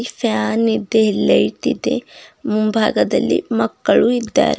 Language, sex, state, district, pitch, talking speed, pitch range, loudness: Kannada, female, Karnataka, Bidar, 220 Hz, 90 wpm, 215-230 Hz, -17 LUFS